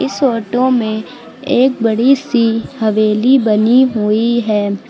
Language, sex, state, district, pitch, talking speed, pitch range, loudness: Hindi, female, Uttar Pradesh, Lucknow, 230 Hz, 125 wpm, 215-255 Hz, -13 LUFS